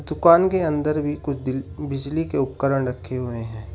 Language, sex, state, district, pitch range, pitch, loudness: Hindi, male, Uttar Pradesh, Shamli, 130-150 Hz, 140 Hz, -22 LUFS